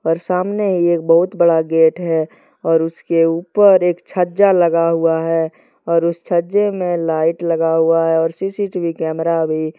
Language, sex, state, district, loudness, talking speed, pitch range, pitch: Hindi, male, Jharkhand, Deoghar, -16 LUFS, 165 wpm, 165-180 Hz, 170 Hz